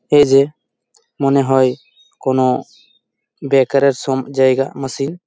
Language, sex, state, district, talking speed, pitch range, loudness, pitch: Bengali, male, West Bengal, Malda, 125 wpm, 130-140 Hz, -16 LUFS, 135 Hz